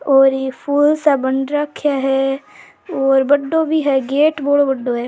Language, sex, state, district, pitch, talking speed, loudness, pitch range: Rajasthani, female, Rajasthan, Churu, 280 Hz, 175 wpm, -16 LUFS, 270-295 Hz